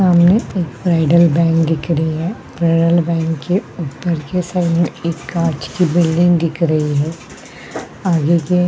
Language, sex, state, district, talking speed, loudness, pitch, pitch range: Hindi, female, Uttarakhand, Tehri Garhwal, 160 wpm, -16 LUFS, 170 Hz, 160-175 Hz